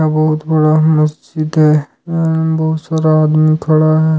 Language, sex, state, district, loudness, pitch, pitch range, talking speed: Hindi, male, Jharkhand, Ranchi, -13 LUFS, 155 Hz, 155-160 Hz, 145 wpm